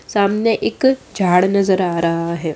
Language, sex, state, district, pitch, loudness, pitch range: Hindi, female, Bihar, Saharsa, 190 Hz, -17 LUFS, 170-210 Hz